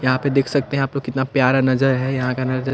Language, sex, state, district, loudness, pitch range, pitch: Hindi, male, Chandigarh, Chandigarh, -19 LUFS, 130-135 Hz, 130 Hz